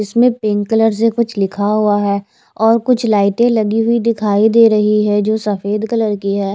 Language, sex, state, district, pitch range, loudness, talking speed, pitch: Hindi, female, Chandigarh, Chandigarh, 205-230 Hz, -14 LUFS, 210 wpm, 215 Hz